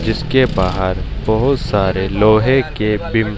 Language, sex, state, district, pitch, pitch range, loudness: Hindi, male, Haryana, Charkhi Dadri, 110 Hz, 95-130 Hz, -16 LUFS